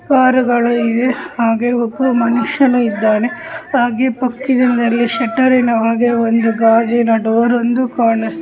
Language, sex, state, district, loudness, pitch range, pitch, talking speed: Kannada, female, Karnataka, Gulbarga, -14 LUFS, 230-255 Hz, 240 Hz, 105 wpm